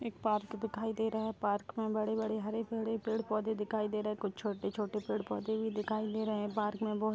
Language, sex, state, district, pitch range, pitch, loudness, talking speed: Hindi, female, Bihar, Darbhanga, 210-220 Hz, 215 Hz, -36 LUFS, 235 wpm